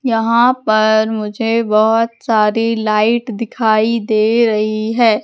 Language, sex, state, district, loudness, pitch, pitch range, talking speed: Hindi, female, Madhya Pradesh, Katni, -14 LUFS, 225 Hz, 215-230 Hz, 115 wpm